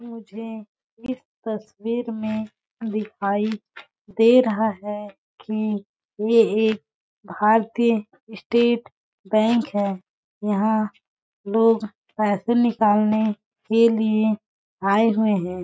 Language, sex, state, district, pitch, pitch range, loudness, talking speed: Hindi, female, Chhattisgarh, Balrampur, 215 Hz, 210-225 Hz, -22 LUFS, 90 wpm